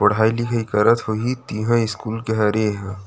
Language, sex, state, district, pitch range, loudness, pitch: Chhattisgarhi, male, Chhattisgarh, Rajnandgaon, 105-115 Hz, -20 LUFS, 110 Hz